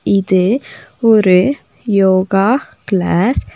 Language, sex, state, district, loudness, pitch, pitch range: Tamil, female, Tamil Nadu, Nilgiris, -13 LUFS, 195 Hz, 185-225 Hz